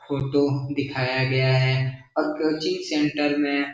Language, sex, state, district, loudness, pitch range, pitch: Hindi, male, Bihar, Jahanabad, -23 LUFS, 130-150 Hz, 140 Hz